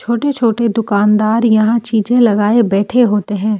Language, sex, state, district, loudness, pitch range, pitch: Hindi, female, Delhi, New Delhi, -13 LUFS, 210-235 Hz, 225 Hz